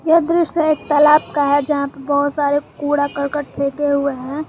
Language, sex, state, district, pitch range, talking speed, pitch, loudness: Hindi, male, Jharkhand, Garhwa, 285-300 Hz, 200 wpm, 290 Hz, -17 LUFS